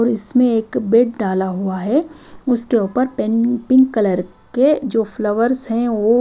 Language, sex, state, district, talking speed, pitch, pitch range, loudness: Hindi, female, Himachal Pradesh, Shimla, 165 wpm, 235 Hz, 215-250 Hz, -17 LUFS